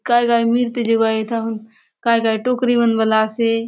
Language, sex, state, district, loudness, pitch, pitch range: Halbi, female, Chhattisgarh, Bastar, -17 LUFS, 230 Hz, 220-235 Hz